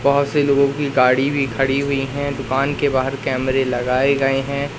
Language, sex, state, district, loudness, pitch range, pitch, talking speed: Hindi, male, Madhya Pradesh, Katni, -18 LUFS, 135-140 Hz, 135 Hz, 200 wpm